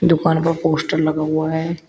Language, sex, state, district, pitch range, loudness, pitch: Hindi, male, Uttar Pradesh, Shamli, 155-165 Hz, -18 LUFS, 160 Hz